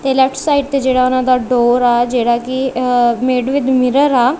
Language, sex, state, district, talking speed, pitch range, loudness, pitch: Punjabi, female, Punjab, Kapurthala, 220 wpm, 245-265 Hz, -14 LUFS, 255 Hz